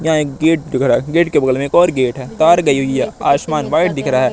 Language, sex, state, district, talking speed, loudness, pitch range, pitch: Hindi, male, Madhya Pradesh, Katni, 305 wpm, -15 LUFS, 130-160 Hz, 140 Hz